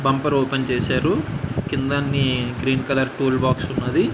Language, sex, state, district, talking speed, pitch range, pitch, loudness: Telugu, male, Andhra Pradesh, Anantapur, 145 wpm, 130-140 Hz, 135 Hz, -21 LUFS